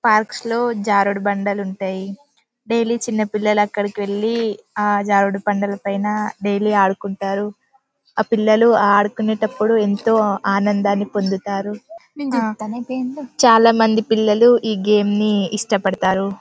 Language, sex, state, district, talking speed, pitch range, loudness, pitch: Telugu, male, Telangana, Karimnagar, 110 wpm, 200-225 Hz, -18 LUFS, 210 Hz